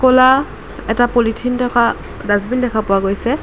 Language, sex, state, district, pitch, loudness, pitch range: Assamese, female, Assam, Kamrup Metropolitan, 245 Hz, -15 LUFS, 220-255 Hz